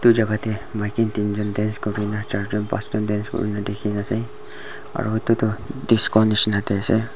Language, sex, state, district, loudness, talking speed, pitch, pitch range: Nagamese, male, Nagaland, Dimapur, -22 LUFS, 175 wpm, 105 Hz, 105-110 Hz